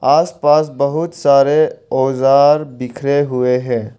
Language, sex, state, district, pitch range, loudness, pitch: Hindi, male, Arunachal Pradesh, Longding, 130-150 Hz, -14 LUFS, 140 Hz